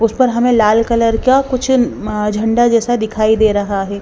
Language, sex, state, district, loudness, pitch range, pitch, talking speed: Hindi, female, Bihar, West Champaran, -14 LUFS, 215-240 Hz, 230 Hz, 195 wpm